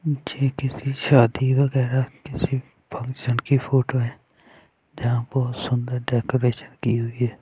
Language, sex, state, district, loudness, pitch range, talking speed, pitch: Hindi, male, Chhattisgarh, Raipur, -23 LUFS, 120-135 Hz, 130 wpm, 130 Hz